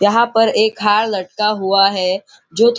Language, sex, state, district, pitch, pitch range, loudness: Hindi, male, Maharashtra, Nagpur, 210 Hz, 195-220 Hz, -15 LUFS